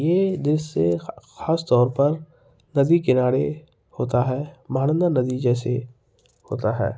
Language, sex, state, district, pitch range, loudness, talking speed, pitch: Hindi, male, Bihar, Kishanganj, 125-155 Hz, -22 LUFS, 120 wpm, 130 Hz